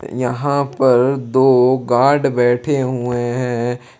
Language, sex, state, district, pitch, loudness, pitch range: Hindi, male, Jharkhand, Palamu, 125 Hz, -16 LUFS, 120-135 Hz